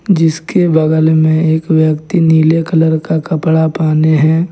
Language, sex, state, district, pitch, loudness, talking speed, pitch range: Hindi, male, Jharkhand, Deoghar, 160 Hz, -11 LUFS, 145 wpm, 160-165 Hz